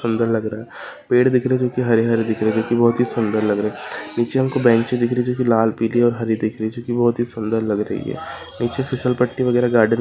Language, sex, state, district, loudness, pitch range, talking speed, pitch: Hindi, female, Jharkhand, Sahebganj, -19 LUFS, 110-125 Hz, 290 wpm, 115 Hz